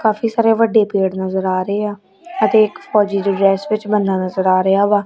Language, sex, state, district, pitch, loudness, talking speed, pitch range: Punjabi, female, Punjab, Kapurthala, 200 Hz, -16 LUFS, 225 wpm, 190-215 Hz